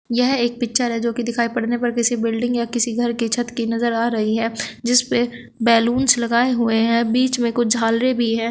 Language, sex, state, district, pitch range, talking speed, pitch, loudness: Hindi, female, Uttar Pradesh, Shamli, 230-240 Hz, 225 wpm, 235 Hz, -19 LUFS